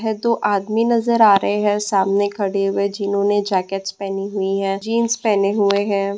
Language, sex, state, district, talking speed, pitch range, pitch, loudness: Hindi, female, Bihar, Jamui, 185 wpm, 195-210 Hz, 200 Hz, -18 LUFS